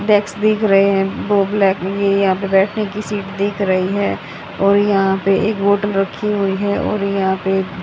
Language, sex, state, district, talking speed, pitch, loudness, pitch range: Hindi, female, Haryana, Jhajjar, 190 wpm, 200 Hz, -17 LUFS, 195-205 Hz